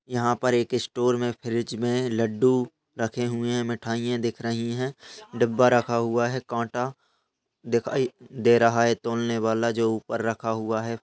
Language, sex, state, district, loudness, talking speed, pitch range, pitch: Hindi, male, Uttar Pradesh, Gorakhpur, -25 LUFS, 170 wpm, 115-125 Hz, 120 Hz